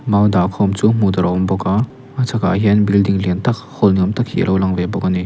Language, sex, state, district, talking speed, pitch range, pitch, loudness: Mizo, male, Mizoram, Aizawl, 310 wpm, 95-110 Hz, 100 Hz, -16 LUFS